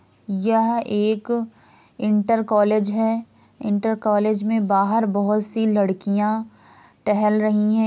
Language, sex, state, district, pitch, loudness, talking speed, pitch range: Hindi, female, Uttar Pradesh, Hamirpur, 215 Hz, -21 LUFS, 115 wpm, 210-225 Hz